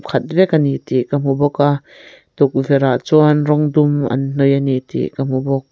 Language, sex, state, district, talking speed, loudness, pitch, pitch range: Mizo, female, Mizoram, Aizawl, 210 wpm, -16 LUFS, 140 Hz, 135-150 Hz